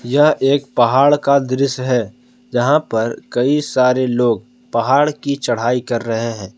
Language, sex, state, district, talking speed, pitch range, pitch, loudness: Hindi, male, Jharkhand, Palamu, 155 wpm, 120-140 Hz, 125 Hz, -16 LUFS